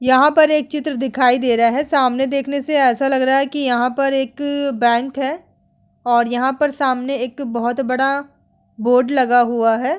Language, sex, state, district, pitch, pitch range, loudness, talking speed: Hindi, female, Chhattisgarh, Sukma, 265 Hz, 245-280 Hz, -17 LUFS, 190 wpm